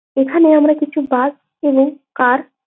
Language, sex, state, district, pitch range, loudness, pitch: Bengali, female, West Bengal, Jalpaiguri, 265-300 Hz, -15 LUFS, 280 Hz